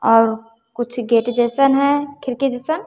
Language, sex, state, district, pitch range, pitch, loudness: Hindi, female, Bihar, West Champaran, 230-275 Hz, 245 Hz, -18 LUFS